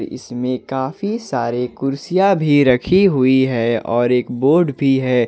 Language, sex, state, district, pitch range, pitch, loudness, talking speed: Hindi, male, Jharkhand, Ranchi, 125-145 Hz, 130 Hz, -17 LUFS, 150 wpm